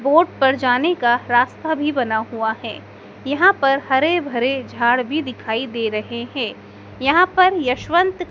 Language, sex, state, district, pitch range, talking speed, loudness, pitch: Hindi, male, Madhya Pradesh, Dhar, 240-315 Hz, 160 wpm, -18 LUFS, 265 Hz